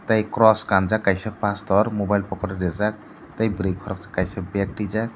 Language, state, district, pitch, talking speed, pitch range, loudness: Kokborok, Tripura, Dhalai, 105 Hz, 175 wpm, 95-110 Hz, -22 LUFS